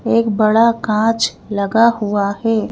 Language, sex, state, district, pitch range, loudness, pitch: Hindi, female, Madhya Pradesh, Bhopal, 210-230 Hz, -15 LUFS, 220 Hz